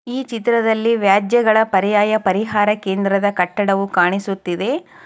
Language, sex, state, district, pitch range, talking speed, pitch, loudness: Kannada, female, Karnataka, Chamarajanagar, 195-225 Hz, 95 wpm, 205 Hz, -17 LUFS